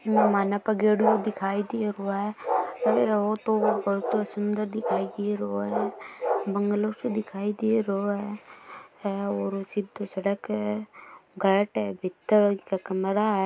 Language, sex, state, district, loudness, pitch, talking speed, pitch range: Marwari, female, Rajasthan, Churu, -27 LUFS, 205 Hz, 140 wpm, 195-215 Hz